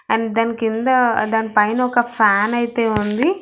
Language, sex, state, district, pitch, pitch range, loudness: Telugu, female, Telangana, Hyderabad, 225 Hz, 220-240 Hz, -17 LUFS